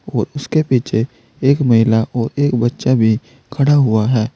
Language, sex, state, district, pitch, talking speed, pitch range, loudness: Hindi, male, Uttar Pradesh, Saharanpur, 125 Hz, 150 wpm, 115-140 Hz, -16 LUFS